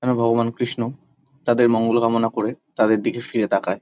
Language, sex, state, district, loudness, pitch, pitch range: Bengali, male, West Bengal, Kolkata, -21 LUFS, 115 Hz, 115-120 Hz